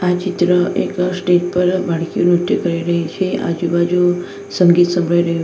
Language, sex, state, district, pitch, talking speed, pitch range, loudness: Gujarati, female, Gujarat, Valsad, 175 Hz, 165 wpm, 170-180 Hz, -16 LUFS